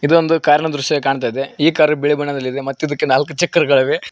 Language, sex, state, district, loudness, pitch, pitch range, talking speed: Kannada, male, Karnataka, Koppal, -16 LUFS, 150 Hz, 140-160 Hz, 220 wpm